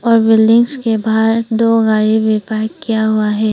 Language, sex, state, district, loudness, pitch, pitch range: Hindi, female, Arunachal Pradesh, Papum Pare, -13 LUFS, 220 Hz, 220-230 Hz